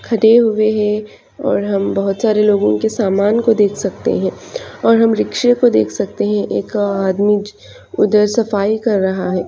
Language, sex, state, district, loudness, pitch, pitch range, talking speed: Hindi, female, Chhattisgarh, Raigarh, -15 LUFS, 210 Hz, 200-225 Hz, 185 wpm